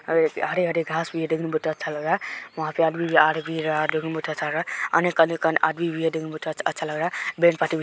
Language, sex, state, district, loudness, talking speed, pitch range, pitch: Hindi, male, Bihar, Darbhanga, -24 LUFS, 245 wpm, 155-165 Hz, 160 Hz